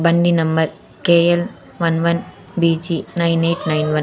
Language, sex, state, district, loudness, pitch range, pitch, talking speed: Telugu, female, Andhra Pradesh, Sri Satya Sai, -18 LUFS, 160-175 Hz, 170 Hz, 195 wpm